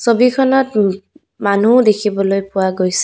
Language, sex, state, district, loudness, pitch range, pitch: Assamese, female, Assam, Kamrup Metropolitan, -14 LUFS, 195-235 Hz, 205 Hz